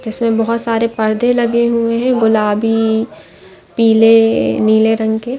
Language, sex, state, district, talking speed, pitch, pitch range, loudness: Hindi, female, Chhattisgarh, Bastar, 145 wpm, 225 Hz, 220-235 Hz, -13 LUFS